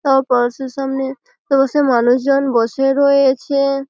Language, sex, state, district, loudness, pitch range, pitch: Bengali, female, West Bengal, Malda, -15 LUFS, 265-275 Hz, 270 Hz